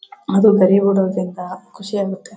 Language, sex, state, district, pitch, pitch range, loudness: Kannada, female, Karnataka, Mysore, 195 Hz, 185-210 Hz, -16 LUFS